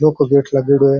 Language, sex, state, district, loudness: Rajasthani, male, Rajasthan, Churu, -14 LUFS